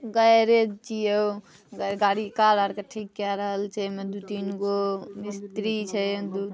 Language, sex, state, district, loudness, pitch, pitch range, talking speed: Maithili, female, Bihar, Saharsa, -25 LUFS, 205 Hz, 200-215 Hz, 155 wpm